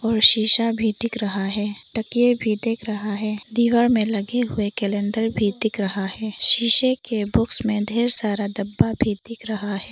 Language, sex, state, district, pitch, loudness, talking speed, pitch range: Hindi, female, Arunachal Pradesh, Papum Pare, 220 Hz, -20 LUFS, 180 wpm, 205-230 Hz